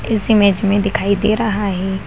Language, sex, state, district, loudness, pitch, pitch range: Hindi, female, Bihar, Kishanganj, -16 LUFS, 200 Hz, 200-215 Hz